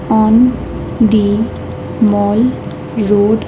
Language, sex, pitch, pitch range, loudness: English, female, 220 Hz, 205-230 Hz, -13 LUFS